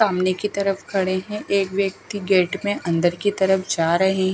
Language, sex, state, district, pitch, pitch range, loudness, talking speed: Hindi, female, Haryana, Charkhi Dadri, 190 Hz, 185-200 Hz, -21 LUFS, 195 wpm